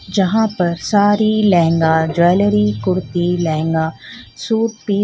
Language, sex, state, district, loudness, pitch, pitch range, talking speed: Hindi, female, Jharkhand, Ranchi, -16 LUFS, 175 Hz, 160-205 Hz, 120 wpm